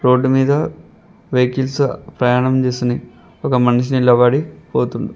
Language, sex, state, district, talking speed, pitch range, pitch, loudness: Telugu, male, Telangana, Mahabubabad, 105 wpm, 125-135 Hz, 125 Hz, -16 LUFS